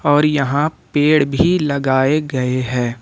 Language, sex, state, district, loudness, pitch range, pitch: Hindi, male, Jharkhand, Ranchi, -16 LUFS, 130-150 Hz, 140 Hz